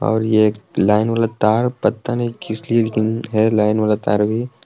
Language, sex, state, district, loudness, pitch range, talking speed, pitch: Hindi, male, Jharkhand, Palamu, -18 LUFS, 110-115 Hz, 205 wpm, 110 Hz